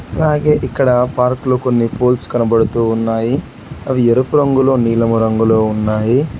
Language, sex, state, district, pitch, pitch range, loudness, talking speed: Telugu, male, Telangana, Hyderabad, 125 Hz, 115-130 Hz, -14 LUFS, 130 wpm